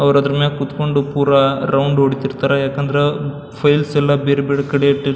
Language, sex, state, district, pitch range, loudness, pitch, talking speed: Kannada, male, Karnataka, Belgaum, 140-145 Hz, -16 LUFS, 140 Hz, 185 wpm